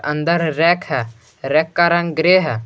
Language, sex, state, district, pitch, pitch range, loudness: Hindi, male, Jharkhand, Garhwa, 160 Hz, 135-170 Hz, -16 LUFS